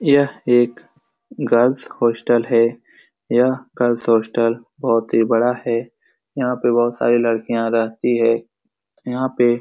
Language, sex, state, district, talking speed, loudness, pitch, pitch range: Hindi, male, Bihar, Supaul, 135 wpm, -18 LUFS, 120 Hz, 115-125 Hz